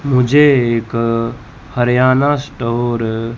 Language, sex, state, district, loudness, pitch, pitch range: Hindi, male, Chandigarh, Chandigarh, -14 LUFS, 120 Hz, 115-130 Hz